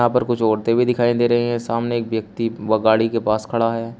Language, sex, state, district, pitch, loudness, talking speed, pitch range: Hindi, male, Uttar Pradesh, Shamli, 115 Hz, -19 LUFS, 270 wpm, 110-120 Hz